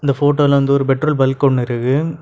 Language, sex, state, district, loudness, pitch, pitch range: Tamil, male, Tamil Nadu, Kanyakumari, -15 LUFS, 140 Hz, 135-145 Hz